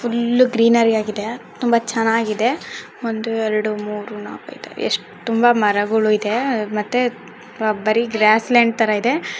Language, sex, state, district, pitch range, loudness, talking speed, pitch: Kannada, female, Karnataka, Raichur, 215-235 Hz, -18 LUFS, 130 wpm, 225 Hz